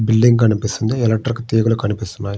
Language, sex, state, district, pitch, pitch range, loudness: Telugu, male, Andhra Pradesh, Srikakulam, 110 Hz, 105-115 Hz, -17 LUFS